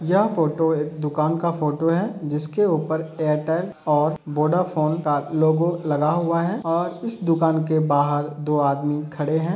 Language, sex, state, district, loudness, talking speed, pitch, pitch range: Hindi, male, Uttar Pradesh, Hamirpur, -22 LUFS, 165 wpm, 160 Hz, 150-170 Hz